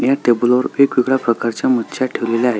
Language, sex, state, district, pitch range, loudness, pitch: Marathi, male, Maharashtra, Solapur, 115-130 Hz, -16 LUFS, 125 Hz